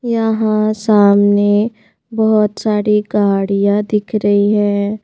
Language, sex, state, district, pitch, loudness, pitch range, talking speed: Hindi, female, Madhya Pradesh, Bhopal, 210 Hz, -14 LUFS, 205-215 Hz, 95 wpm